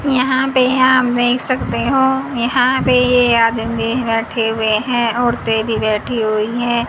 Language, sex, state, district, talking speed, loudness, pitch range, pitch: Hindi, female, Haryana, Jhajjar, 155 wpm, -15 LUFS, 225-255 Hz, 240 Hz